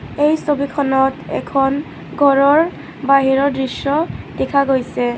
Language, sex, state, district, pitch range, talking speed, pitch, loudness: Assamese, female, Assam, Kamrup Metropolitan, 270-290 Hz, 95 wpm, 275 Hz, -16 LUFS